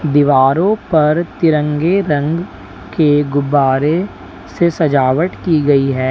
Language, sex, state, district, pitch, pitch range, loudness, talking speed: Hindi, male, Uttar Pradesh, Lalitpur, 150 Hz, 140-170 Hz, -14 LUFS, 110 wpm